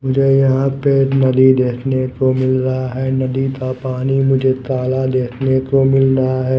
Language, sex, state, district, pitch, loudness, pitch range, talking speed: Hindi, male, Odisha, Nuapada, 130 Hz, -15 LUFS, 130-135 Hz, 175 wpm